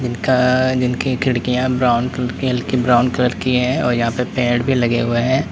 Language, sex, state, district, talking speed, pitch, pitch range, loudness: Hindi, male, Uttar Pradesh, Lalitpur, 195 wpm, 125 Hz, 120-130 Hz, -17 LUFS